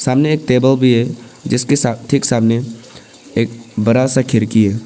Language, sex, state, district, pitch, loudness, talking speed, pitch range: Hindi, male, Arunachal Pradesh, Papum Pare, 120 Hz, -15 LUFS, 100 wpm, 115-130 Hz